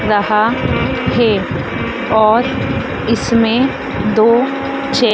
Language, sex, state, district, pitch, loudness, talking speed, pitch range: Hindi, female, Madhya Pradesh, Dhar, 225 Hz, -14 LUFS, 80 wpm, 215-245 Hz